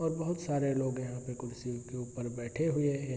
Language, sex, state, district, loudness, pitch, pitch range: Hindi, male, Bihar, Araria, -35 LUFS, 130 Hz, 125-145 Hz